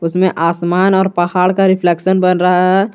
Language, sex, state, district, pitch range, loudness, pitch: Hindi, male, Jharkhand, Garhwa, 175-190 Hz, -13 LUFS, 180 Hz